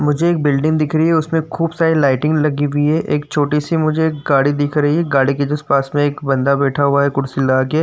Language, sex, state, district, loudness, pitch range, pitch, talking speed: Hindi, male, Uttar Pradesh, Jyotiba Phule Nagar, -16 LUFS, 140-155 Hz, 145 Hz, 270 wpm